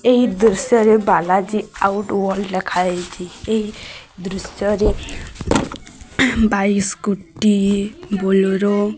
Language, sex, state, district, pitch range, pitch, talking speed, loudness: Odia, female, Odisha, Sambalpur, 190-210 Hz, 200 Hz, 85 wpm, -18 LUFS